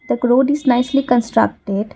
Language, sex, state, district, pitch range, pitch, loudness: English, female, Assam, Kamrup Metropolitan, 230-265 Hz, 245 Hz, -16 LUFS